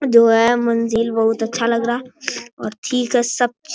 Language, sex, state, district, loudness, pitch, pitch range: Hindi, male, Bihar, Bhagalpur, -18 LUFS, 235 Hz, 230-245 Hz